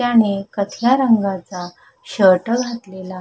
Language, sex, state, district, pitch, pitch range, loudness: Marathi, female, Maharashtra, Sindhudurg, 200 Hz, 190-235 Hz, -17 LUFS